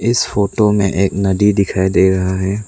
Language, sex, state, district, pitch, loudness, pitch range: Hindi, male, Arunachal Pradesh, Lower Dibang Valley, 100 Hz, -15 LUFS, 95-105 Hz